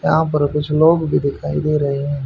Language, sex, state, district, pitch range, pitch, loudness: Hindi, male, Haryana, Charkhi Dadri, 140-155 Hz, 150 Hz, -17 LUFS